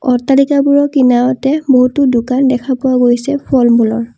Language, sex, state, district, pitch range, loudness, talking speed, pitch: Assamese, female, Assam, Kamrup Metropolitan, 245-275 Hz, -11 LUFS, 130 wpm, 260 Hz